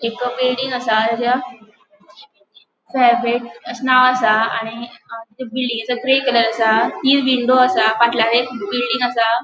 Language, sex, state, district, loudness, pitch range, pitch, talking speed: Konkani, female, Goa, North and South Goa, -16 LUFS, 225-255 Hz, 240 Hz, 120 wpm